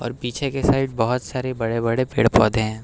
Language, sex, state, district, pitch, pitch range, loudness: Hindi, male, Uttar Pradesh, Lucknow, 120 Hz, 115-130 Hz, -21 LUFS